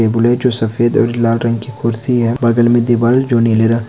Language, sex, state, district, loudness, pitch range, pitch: Hindi, male, Uttarakhand, Uttarkashi, -13 LUFS, 115-120 Hz, 115 Hz